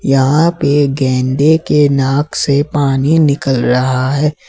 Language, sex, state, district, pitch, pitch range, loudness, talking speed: Hindi, male, Jharkhand, Ranchi, 140 Hz, 135-150 Hz, -12 LUFS, 135 wpm